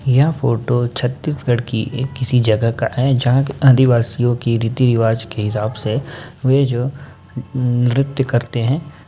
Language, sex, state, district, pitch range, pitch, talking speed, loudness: Hindi, male, Uttar Pradesh, Ghazipur, 115-135 Hz, 125 Hz, 145 wpm, -17 LUFS